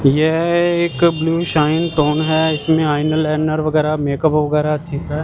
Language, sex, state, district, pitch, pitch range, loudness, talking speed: Hindi, male, Punjab, Fazilka, 155 Hz, 150-160 Hz, -16 LUFS, 160 wpm